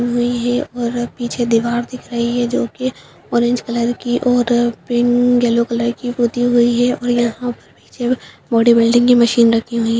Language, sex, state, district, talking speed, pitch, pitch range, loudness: Hindi, female, Uttarakhand, Uttarkashi, 190 wpm, 240 Hz, 235-245 Hz, -16 LUFS